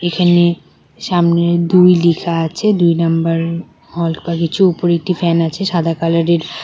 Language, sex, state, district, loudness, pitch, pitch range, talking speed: Bengali, female, West Bengal, Cooch Behar, -14 LUFS, 170 Hz, 165-175 Hz, 145 wpm